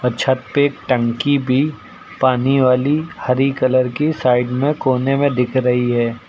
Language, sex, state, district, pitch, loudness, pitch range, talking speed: Hindi, male, Uttar Pradesh, Lucknow, 130 Hz, -17 LUFS, 125-140 Hz, 155 wpm